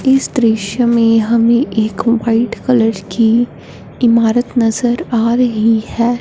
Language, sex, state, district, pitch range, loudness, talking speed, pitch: Hindi, female, Punjab, Fazilka, 225-240 Hz, -13 LUFS, 125 wpm, 235 Hz